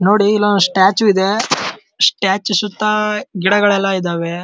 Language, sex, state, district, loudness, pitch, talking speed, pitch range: Kannada, male, Karnataka, Dharwad, -15 LUFS, 205 Hz, 120 wpm, 190-210 Hz